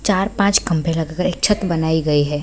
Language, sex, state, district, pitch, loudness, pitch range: Hindi, female, Bihar, Sitamarhi, 170 Hz, -18 LUFS, 160-200 Hz